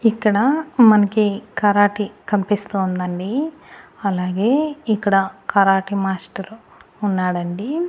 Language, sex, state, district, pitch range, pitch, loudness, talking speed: Telugu, female, Andhra Pradesh, Annamaya, 195-225 Hz, 205 Hz, -19 LUFS, 70 wpm